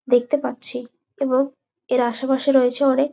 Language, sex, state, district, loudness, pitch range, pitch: Bengali, female, West Bengal, Jalpaiguri, -21 LUFS, 250-275 Hz, 265 Hz